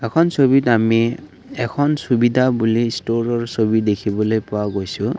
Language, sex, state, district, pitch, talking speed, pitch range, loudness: Assamese, male, Assam, Kamrup Metropolitan, 115 Hz, 125 wpm, 110-125 Hz, -18 LUFS